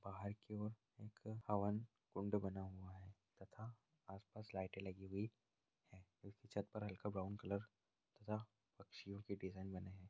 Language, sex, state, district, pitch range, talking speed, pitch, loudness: Hindi, male, Chhattisgarh, Sarguja, 95-110 Hz, 155 wpm, 100 Hz, -49 LUFS